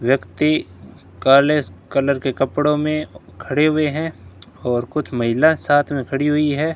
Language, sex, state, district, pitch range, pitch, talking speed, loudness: Hindi, male, Rajasthan, Bikaner, 120-150 Hz, 140 Hz, 150 wpm, -18 LUFS